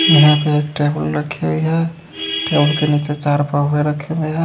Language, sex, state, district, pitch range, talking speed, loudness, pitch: Hindi, male, Odisha, Khordha, 145-150 Hz, 190 wpm, -17 LUFS, 150 Hz